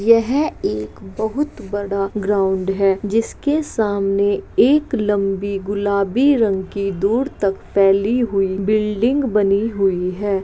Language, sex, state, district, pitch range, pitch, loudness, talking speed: Hindi, female, Bihar, Saharsa, 195-225 Hz, 205 Hz, -18 LUFS, 120 wpm